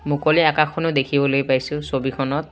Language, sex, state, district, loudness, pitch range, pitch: Assamese, male, Assam, Kamrup Metropolitan, -20 LUFS, 135-155 Hz, 145 Hz